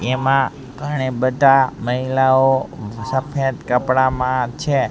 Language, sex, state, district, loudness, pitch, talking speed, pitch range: Gujarati, male, Gujarat, Gandhinagar, -18 LUFS, 130 Hz, 85 wpm, 125-135 Hz